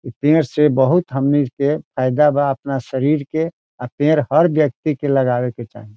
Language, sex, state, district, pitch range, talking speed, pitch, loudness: Bhojpuri, male, Bihar, Saran, 130-150 Hz, 180 wpm, 140 Hz, -17 LUFS